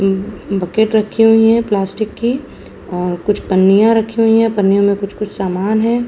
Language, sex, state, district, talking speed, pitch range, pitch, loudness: Hindi, female, Uttar Pradesh, Jalaun, 175 wpm, 195-225 Hz, 210 Hz, -14 LUFS